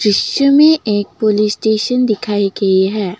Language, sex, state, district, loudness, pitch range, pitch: Hindi, female, Assam, Kamrup Metropolitan, -14 LUFS, 205-245 Hz, 210 Hz